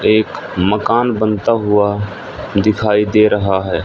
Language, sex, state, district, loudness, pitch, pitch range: Hindi, male, Haryana, Rohtak, -15 LUFS, 105 Hz, 100-110 Hz